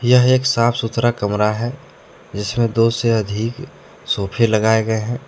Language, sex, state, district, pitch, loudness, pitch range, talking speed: Hindi, male, Jharkhand, Deoghar, 115 Hz, -18 LUFS, 110-120 Hz, 170 wpm